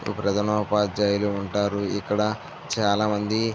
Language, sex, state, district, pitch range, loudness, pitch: Telugu, male, Andhra Pradesh, Visakhapatnam, 100-105 Hz, -24 LUFS, 105 Hz